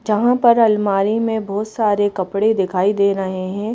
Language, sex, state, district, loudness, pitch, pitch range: Hindi, female, Madhya Pradesh, Bhopal, -17 LUFS, 205 Hz, 195-220 Hz